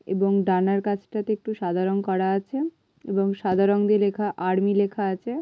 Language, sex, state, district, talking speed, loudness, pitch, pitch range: Bengali, female, West Bengal, Malda, 175 wpm, -24 LUFS, 200 Hz, 190-210 Hz